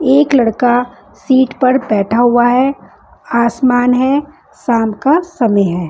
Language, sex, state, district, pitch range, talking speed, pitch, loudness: Hindi, female, Bihar, West Champaran, 230-265 Hz, 130 wpm, 245 Hz, -13 LUFS